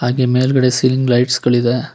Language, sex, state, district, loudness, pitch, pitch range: Kannada, male, Karnataka, Bangalore, -14 LUFS, 125 Hz, 120-130 Hz